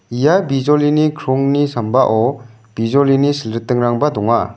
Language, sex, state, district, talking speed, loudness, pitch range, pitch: Garo, male, Meghalaya, South Garo Hills, 90 wpm, -15 LUFS, 115-145 Hz, 135 Hz